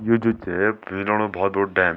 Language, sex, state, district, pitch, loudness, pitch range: Garhwali, male, Uttarakhand, Tehri Garhwal, 105 Hz, -22 LUFS, 100-115 Hz